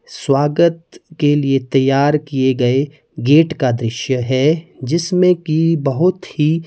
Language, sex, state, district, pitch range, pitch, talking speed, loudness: Hindi, male, Himachal Pradesh, Shimla, 135-165 Hz, 145 Hz, 125 wpm, -16 LUFS